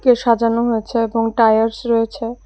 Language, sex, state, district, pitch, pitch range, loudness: Bengali, female, Tripura, West Tripura, 230 Hz, 225-235 Hz, -17 LUFS